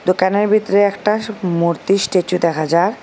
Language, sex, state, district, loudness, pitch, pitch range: Bengali, female, Assam, Hailakandi, -16 LUFS, 190 Hz, 170-205 Hz